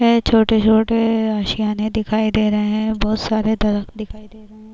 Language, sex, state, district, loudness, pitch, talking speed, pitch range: Urdu, female, Bihar, Kishanganj, -17 LUFS, 220 Hz, 190 wpm, 215-220 Hz